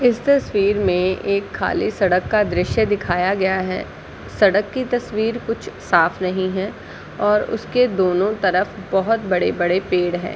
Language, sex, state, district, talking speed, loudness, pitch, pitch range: Hindi, female, Chhattisgarh, Balrampur, 160 wpm, -19 LUFS, 195 Hz, 185-220 Hz